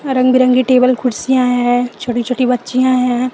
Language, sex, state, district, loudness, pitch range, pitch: Hindi, female, Chhattisgarh, Raipur, -14 LUFS, 245-255 Hz, 250 Hz